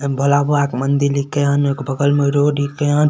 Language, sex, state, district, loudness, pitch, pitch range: Maithili, male, Bihar, Supaul, -17 LUFS, 140 Hz, 140-145 Hz